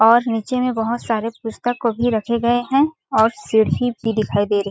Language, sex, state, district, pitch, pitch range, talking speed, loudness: Hindi, female, Chhattisgarh, Balrampur, 230 Hz, 220-240 Hz, 230 wpm, -19 LUFS